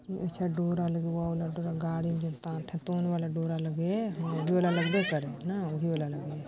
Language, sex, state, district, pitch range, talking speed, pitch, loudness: Chhattisgarhi, female, Chhattisgarh, Balrampur, 165-175 Hz, 165 wpm, 170 Hz, -31 LUFS